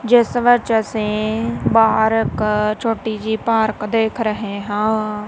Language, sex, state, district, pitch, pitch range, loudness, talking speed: Punjabi, female, Punjab, Kapurthala, 220 Hz, 215-225 Hz, -18 LUFS, 115 wpm